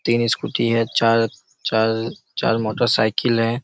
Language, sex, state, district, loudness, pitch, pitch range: Hindi, male, Chhattisgarh, Raigarh, -20 LUFS, 115 Hz, 110-120 Hz